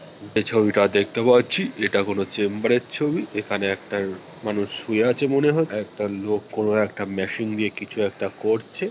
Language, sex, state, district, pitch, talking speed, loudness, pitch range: Bengali, male, West Bengal, North 24 Parganas, 105 Hz, 155 wpm, -23 LUFS, 100-115 Hz